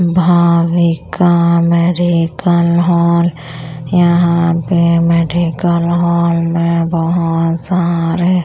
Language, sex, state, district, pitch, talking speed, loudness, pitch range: Hindi, female, Bihar, Kaimur, 170 Hz, 70 wpm, -13 LUFS, 170-175 Hz